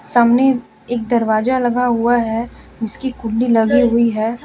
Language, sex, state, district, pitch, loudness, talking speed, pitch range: Hindi, female, Jharkhand, Deoghar, 240 Hz, -16 LUFS, 150 wpm, 225-245 Hz